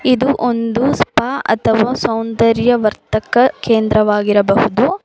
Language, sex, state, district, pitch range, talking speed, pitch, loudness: Kannada, female, Karnataka, Bangalore, 220-250 Hz, 85 wpm, 230 Hz, -14 LUFS